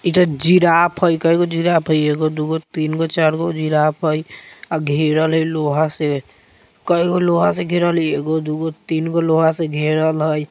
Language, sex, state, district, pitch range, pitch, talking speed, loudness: Bajjika, male, Bihar, Vaishali, 155-170 Hz, 160 Hz, 200 wpm, -17 LUFS